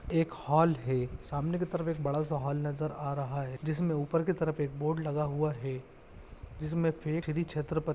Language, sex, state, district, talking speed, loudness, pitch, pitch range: Hindi, male, Maharashtra, Pune, 180 wpm, -32 LUFS, 150 Hz, 140-160 Hz